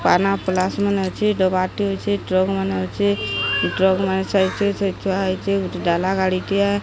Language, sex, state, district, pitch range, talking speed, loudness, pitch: Odia, female, Odisha, Sambalpur, 185-195 Hz, 195 wpm, -20 LUFS, 190 Hz